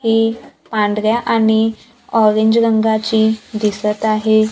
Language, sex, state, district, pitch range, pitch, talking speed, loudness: Marathi, female, Maharashtra, Gondia, 215-225 Hz, 220 Hz, 95 wpm, -15 LUFS